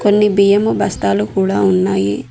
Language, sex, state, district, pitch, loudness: Telugu, female, Telangana, Mahabubabad, 190 Hz, -14 LUFS